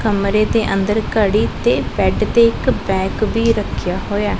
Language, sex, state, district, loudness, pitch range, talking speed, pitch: Punjabi, female, Punjab, Pathankot, -17 LUFS, 200-220 Hz, 165 wpm, 210 Hz